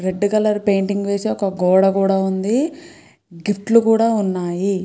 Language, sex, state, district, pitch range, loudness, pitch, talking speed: Telugu, female, Andhra Pradesh, Krishna, 190-220 Hz, -18 LUFS, 200 Hz, 135 wpm